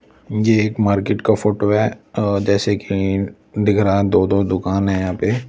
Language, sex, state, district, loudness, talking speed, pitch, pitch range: Hindi, male, Delhi, New Delhi, -18 LUFS, 185 wpm, 100 Hz, 100-105 Hz